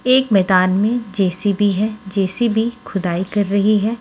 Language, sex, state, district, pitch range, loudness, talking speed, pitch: Hindi, female, Delhi, New Delhi, 190-220 Hz, -17 LUFS, 150 wpm, 205 Hz